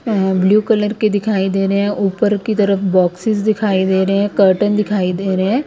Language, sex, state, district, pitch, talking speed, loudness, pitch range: Hindi, female, Punjab, Kapurthala, 200 Hz, 235 wpm, -15 LUFS, 190-210 Hz